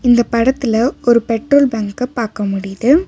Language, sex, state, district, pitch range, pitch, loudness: Tamil, female, Tamil Nadu, Nilgiris, 225-260 Hz, 235 Hz, -15 LUFS